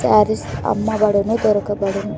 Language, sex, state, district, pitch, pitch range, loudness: Telugu, female, Andhra Pradesh, Sri Satya Sai, 210 Hz, 205-215 Hz, -18 LUFS